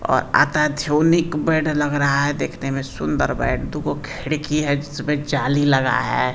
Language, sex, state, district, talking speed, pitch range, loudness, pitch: Hindi, male, Bihar, Saran, 150 wpm, 140-150 Hz, -20 LUFS, 145 Hz